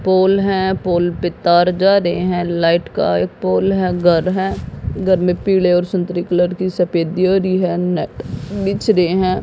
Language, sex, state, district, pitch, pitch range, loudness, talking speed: Hindi, female, Haryana, Jhajjar, 180 Hz, 175-190 Hz, -16 LUFS, 190 wpm